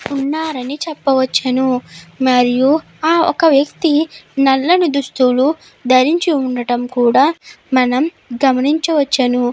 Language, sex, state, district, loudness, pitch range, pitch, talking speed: Telugu, female, Andhra Pradesh, Guntur, -15 LUFS, 255-310 Hz, 270 Hz, 75 wpm